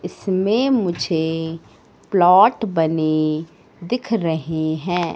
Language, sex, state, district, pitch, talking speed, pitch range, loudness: Hindi, female, Madhya Pradesh, Katni, 175 Hz, 80 wpm, 160-195 Hz, -19 LUFS